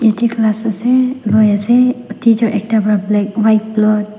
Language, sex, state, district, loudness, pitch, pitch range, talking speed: Nagamese, female, Nagaland, Dimapur, -14 LUFS, 220 Hz, 210-230 Hz, 145 wpm